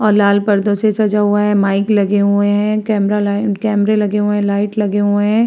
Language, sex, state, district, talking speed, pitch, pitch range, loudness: Hindi, female, Uttar Pradesh, Varanasi, 230 wpm, 205 Hz, 205-210 Hz, -14 LUFS